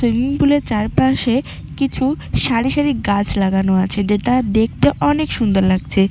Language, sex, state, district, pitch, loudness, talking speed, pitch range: Bengali, female, West Bengal, Cooch Behar, 220 Hz, -17 LUFS, 145 wpm, 195-260 Hz